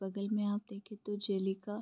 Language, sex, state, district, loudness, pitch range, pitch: Hindi, female, Bihar, Vaishali, -37 LUFS, 200-210 Hz, 205 Hz